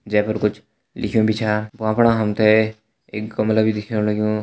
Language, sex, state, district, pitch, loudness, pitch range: Hindi, male, Uttarakhand, Tehri Garhwal, 110 Hz, -19 LUFS, 105-110 Hz